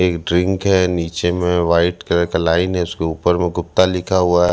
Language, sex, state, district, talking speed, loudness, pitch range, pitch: Hindi, male, Punjab, Kapurthala, 210 wpm, -17 LUFS, 85-90 Hz, 90 Hz